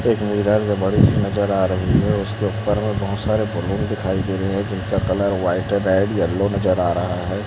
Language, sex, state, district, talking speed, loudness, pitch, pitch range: Hindi, male, Chhattisgarh, Raipur, 215 wpm, -20 LUFS, 100 Hz, 95-105 Hz